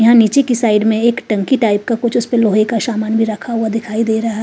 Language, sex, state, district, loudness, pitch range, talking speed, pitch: Hindi, female, Haryana, Rohtak, -15 LUFS, 220-235 Hz, 295 wpm, 225 Hz